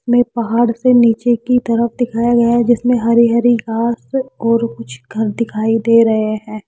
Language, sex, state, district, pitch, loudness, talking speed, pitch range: Hindi, female, Rajasthan, Jaipur, 235 Hz, -14 LUFS, 180 wpm, 225-240 Hz